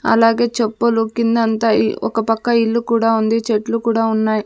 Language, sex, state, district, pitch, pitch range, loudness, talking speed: Telugu, female, Andhra Pradesh, Sri Satya Sai, 225 Hz, 225-230 Hz, -16 LUFS, 150 wpm